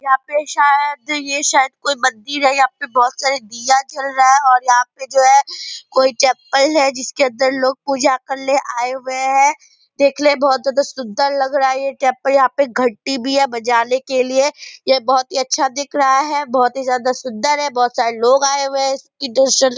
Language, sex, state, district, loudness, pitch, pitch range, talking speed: Hindi, female, Bihar, Purnia, -16 LUFS, 270 Hz, 260-280 Hz, 210 wpm